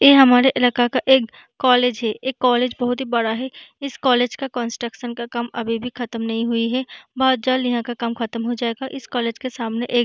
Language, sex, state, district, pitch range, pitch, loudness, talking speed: Hindi, female, Bihar, Vaishali, 235-255 Hz, 245 Hz, -20 LUFS, 215 wpm